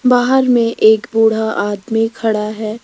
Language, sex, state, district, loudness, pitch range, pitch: Hindi, female, Rajasthan, Jaipur, -14 LUFS, 215-240 Hz, 225 Hz